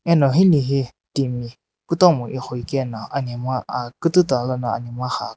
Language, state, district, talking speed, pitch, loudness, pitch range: Sumi, Nagaland, Dimapur, 165 wpm, 130 Hz, -21 LUFS, 120-145 Hz